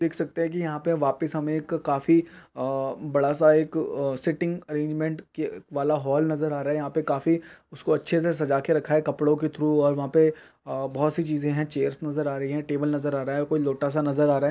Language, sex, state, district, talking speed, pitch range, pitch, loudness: Hindi, male, Chhattisgarh, Bilaspur, 250 wpm, 145-160 Hz, 150 Hz, -25 LUFS